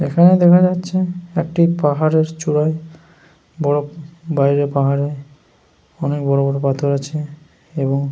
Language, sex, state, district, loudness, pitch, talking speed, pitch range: Bengali, male, West Bengal, Jhargram, -17 LUFS, 155 Hz, 95 wpm, 140-165 Hz